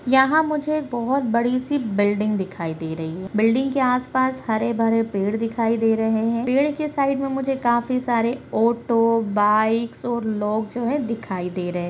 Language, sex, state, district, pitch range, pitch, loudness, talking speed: Hindi, female, Bihar, Kishanganj, 215-260 Hz, 230 Hz, -22 LUFS, 180 wpm